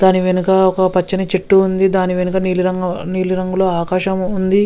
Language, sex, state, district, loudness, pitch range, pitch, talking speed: Telugu, male, Andhra Pradesh, Visakhapatnam, -16 LUFS, 185-190 Hz, 185 Hz, 165 wpm